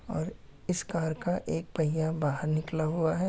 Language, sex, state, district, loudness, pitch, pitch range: Hindi, male, Uttar Pradesh, Etah, -31 LUFS, 160 Hz, 155-170 Hz